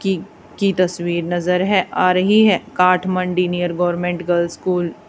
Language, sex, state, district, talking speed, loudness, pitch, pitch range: Hindi, female, Haryana, Charkhi Dadri, 175 wpm, -18 LUFS, 180 Hz, 175-185 Hz